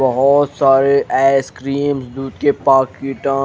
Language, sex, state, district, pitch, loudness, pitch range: Hindi, male, Odisha, Khordha, 135 Hz, -15 LUFS, 135-140 Hz